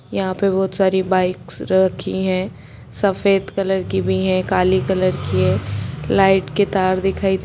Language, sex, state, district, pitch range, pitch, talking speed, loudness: Hindi, female, Bihar, Sitamarhi, 150-190 Hz, 190 Hz, 170 wpm, -18 LUFS